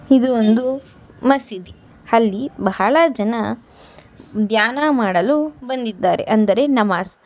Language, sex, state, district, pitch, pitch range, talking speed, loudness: Kannada, female, Karnataka, Bangalore, 230 Hz, 215-275 Hz, 90 wpm, -17 LUFS